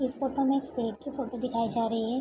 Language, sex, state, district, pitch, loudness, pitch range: Hindi, female, Bihar, Araria, 250 Hz, -30 LUFS, 230-270 Hz